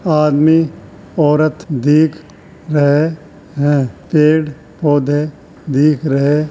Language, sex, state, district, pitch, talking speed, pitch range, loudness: Hindi, male, Uttar Pradesh, Hamirpur, 150 Hz, 85 wpm, 145-155 Hz, -14 LUFS